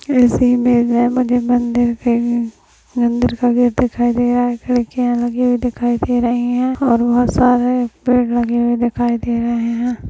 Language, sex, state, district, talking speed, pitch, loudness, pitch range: Hindi, male, Uttarakhand, Tehri Garhwal, 135 wpm, 245 Hz, -16 LUFS, 240-245 Hz